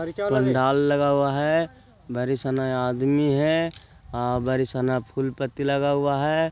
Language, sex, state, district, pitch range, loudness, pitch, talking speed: Hindi, male, Bihar, Jahanabad, 130-145 Hz, -23 LUFS, 135 Hz, 140 wpm